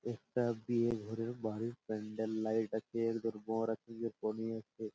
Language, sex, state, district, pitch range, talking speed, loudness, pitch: Bengali, male, West Bengal, Purulia, 110-115 Hz, 160 wpm, -38 LUFS, 115 Hz